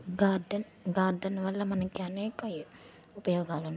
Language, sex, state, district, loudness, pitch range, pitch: Telugu, female, Andhra Pradesh, Srikakulam, -32 LUFS, 180-200 Hz, 190 Hz